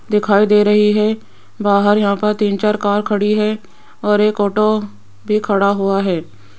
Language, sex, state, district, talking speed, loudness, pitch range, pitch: Hindi, female, Rajasthan, Jaipur, 175 wpm, -15 LUFS, 200-210 Hz, 210 Hz